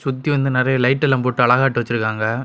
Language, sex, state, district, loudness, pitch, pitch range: Tamil, male, Tamil Nadu, Kanyakumari, -17 LUFS, 125 Hz, 120-135 Hz